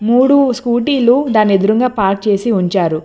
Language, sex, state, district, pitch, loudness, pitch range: Telugu, female, Telangana, Mahabubabad, 225 Hz, -13 LUFS, 200-250 Hz